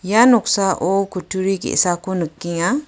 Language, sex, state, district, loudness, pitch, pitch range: Garo, female, Meghalaya, West Garo Hills, -18 LUFS, 190 Hz, 175-200 Hz